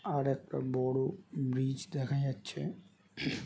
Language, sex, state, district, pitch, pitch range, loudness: Bengali, male, West Bengal, Jhargram, 135 Hz, 130-140 Hz, -35 LUFS